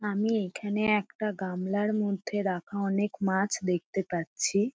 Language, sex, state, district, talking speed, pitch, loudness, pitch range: Bengali, female, West Bengal, Dakshin Dinajpur, 125 wpm, 200 Hz, -30 LUFS, 190-210 Hz